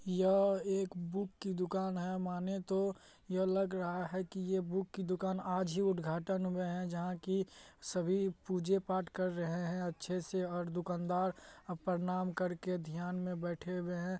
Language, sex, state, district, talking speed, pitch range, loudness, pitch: Hindi, male, Bihar, Madhepura, 175 wpm, 180-190 Hz, -37 LUFS, 185 Hz